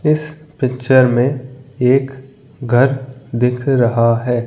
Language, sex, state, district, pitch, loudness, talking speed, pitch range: Hindi, male, Rajasthan, Jaipur, 130 Hz, -15 LUFS, 110 wpm, 125-135 Hz